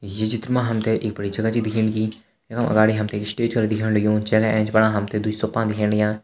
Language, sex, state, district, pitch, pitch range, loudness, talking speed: Hindi, male, Uttarakhand, Uttarkashi, 110 Hz, 105-110 Hz, -21 LUFS, 240 wpm